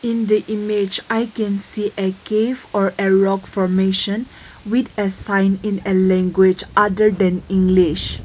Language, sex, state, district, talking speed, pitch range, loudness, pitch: English, female, Nagaland, Kohima, 155 wpm, 190-210 Hz, -18 LUFS, 200 Hz